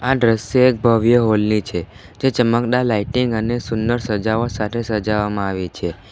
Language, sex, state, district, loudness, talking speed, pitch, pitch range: Gujarati, male, Gujarat, Valsad, -18 LUFS, 165 wpm, 115 Hz, 105-120 Hz